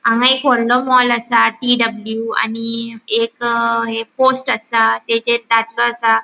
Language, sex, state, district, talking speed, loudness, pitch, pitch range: Konkani, female, Goa, North and South Goa, 135 wpm, -15 LUFS, 230 Hz, 225-240 Hz